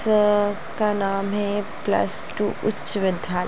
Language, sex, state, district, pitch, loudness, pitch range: Hindi, female, Bihar, Jamui, 205 Hz, -21 LUFS, 195-210 Hz